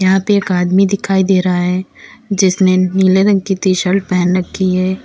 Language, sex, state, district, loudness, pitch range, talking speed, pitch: Hindi, female, Uttar Pradesh, Lalitpur, -13 LUFS, 185-195 Hz, 200 wpm, 190 Hz